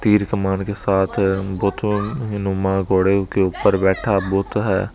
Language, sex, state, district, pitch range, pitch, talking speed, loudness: Hindi, male, Delhi, New Delhi, 95-105 Hz, 100 Hz, 120 wpm, -19 LUFS